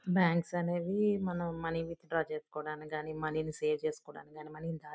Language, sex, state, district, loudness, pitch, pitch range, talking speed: Telugu, female, Andhra Pradesh, Guntur, -35 LUFS, 165 Hz, 155-175 Hz, 170 wpm